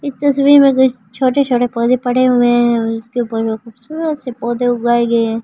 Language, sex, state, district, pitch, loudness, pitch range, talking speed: Hindi, female, Delhi, New Delhi, 245 Hz, -14 LUFS, 235-260 Hz, 200 wpm